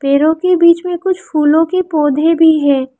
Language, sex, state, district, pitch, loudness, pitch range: Hindi, female, Arunachal Pradesh, Lower Dibang Valley, 320 Hz, -12 LUFS, 295-350 Hz